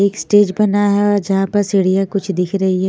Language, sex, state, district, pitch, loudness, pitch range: Hindi, female, Punjab, Fazilka, 195 Hz, -15 LUFS, 190-205 Hz